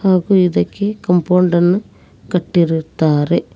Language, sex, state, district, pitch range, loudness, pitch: Kannada, female, Karnataka, Koppal, 165-190 Hz, -15 LUFS, 180 Hz